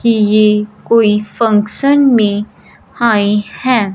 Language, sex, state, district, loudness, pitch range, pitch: Hindi, female, Punjab, Fazilka, -12 LUFS, 210-235 Hz, 215 Hz